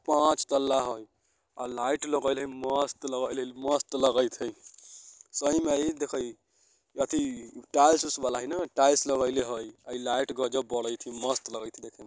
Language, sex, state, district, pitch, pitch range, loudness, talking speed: Bajjika, male, Bihar, Vaishali, 135 Hz, 125-145 Hz, -28 LUFS, 190 wpm